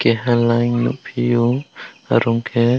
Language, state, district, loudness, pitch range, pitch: Kokborok, Tripura, West Tripura, -18 LUFS, 115-120 Hz, 120 Hz